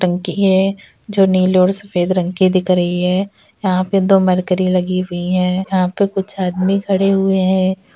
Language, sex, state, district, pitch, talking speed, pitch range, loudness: Hindi, female, Bihar, Kishanganj, 185 Hz, 190 wpm, 185-195 Hz, -16 LUFS